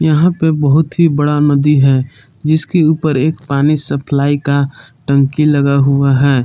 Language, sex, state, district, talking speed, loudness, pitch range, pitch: Hindi, male, Jharkhand, Palamu, 160 wpm, -13 LUFS, 140-155 Hz, 145 Hz